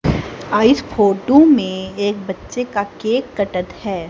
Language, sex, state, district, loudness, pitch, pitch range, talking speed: Hindi, female, Haryana, Charkhi Dadri, -17 LUFS, 205 Hz, 195-245 Hz, 145 wpm